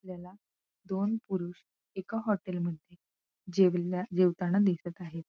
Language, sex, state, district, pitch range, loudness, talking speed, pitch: Marathi, female, Maharashtra, Aurangabad, 175-190 Hz, -31 LUFS, 100 wpm, 180 Hz